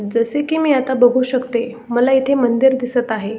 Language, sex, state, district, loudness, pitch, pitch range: Marathi, male, Maharashtra, Solapur, -16 LUFS, 245 Hz, 235-265 Hz